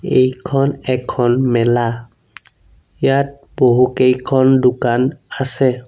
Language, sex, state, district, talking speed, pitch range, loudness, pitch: Assamese, male, Assam, Sonitpur, 70 wpm, 125-135 Hz, -16 LUFS, 130 Hz